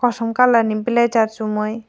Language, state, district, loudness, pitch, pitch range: Kokborok, Tripura, Dhalai, -17 LUFS, 230 Hz, 220-240 Hz